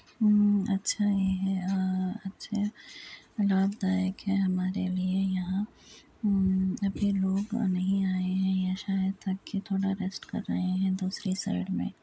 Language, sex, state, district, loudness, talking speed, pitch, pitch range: Hindi, female, Uttar Pradesh, Etah, -29 LUFS, 145 wpm, 190 Hz, 190-200 Hz